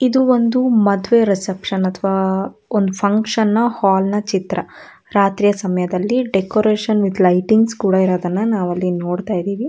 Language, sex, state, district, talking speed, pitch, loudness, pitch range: Kannada, female, Karnataka, Dakshina Kannada, 125 wpm, 200 Hz, -17 LUFS, 190-220 Hz